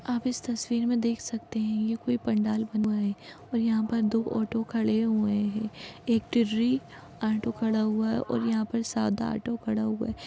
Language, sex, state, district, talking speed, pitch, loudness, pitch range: Hindi, female, Maharashtra, Pune, 200 wpm, 225 Hz, -28 LUFS, 220-235 Hz